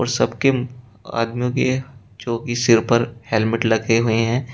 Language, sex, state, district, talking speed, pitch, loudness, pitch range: Hindi, male, Uttar Pradesh, Shamli, 130 wpm, 115 Hz, -19 LUFS, 115-125 Hz